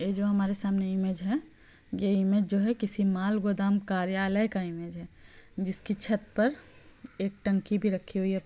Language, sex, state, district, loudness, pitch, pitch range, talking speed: Hindi, female, Jharkhand, Sahebganj, -29 LUFS, 195 Hz, 190-205 Hz, 185 wpm